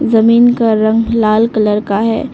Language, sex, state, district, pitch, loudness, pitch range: Hindi, female, Arunachal Pradesh, Lower Dibang Valley, 225 Hz, -11 LUFS, 215-230 Hz